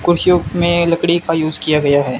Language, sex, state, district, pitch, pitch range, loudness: Hindi, male, Rajasthan, Bikaner, 170 Hz, 155-175 Hz, -15 LUFS